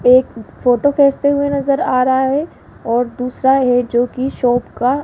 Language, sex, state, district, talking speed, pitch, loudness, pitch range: Hindi, female, Rajasthan, Jaipur, 180 wpm, 260 Hz, -15 LUFS, 245-275 Hz